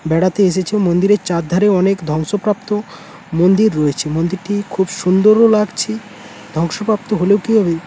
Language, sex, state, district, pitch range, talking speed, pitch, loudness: Bengali, male, West Bengal, Paschim Medinipur, 170-210 Hz, 120 wpm, 190 Hz, -15 LUFS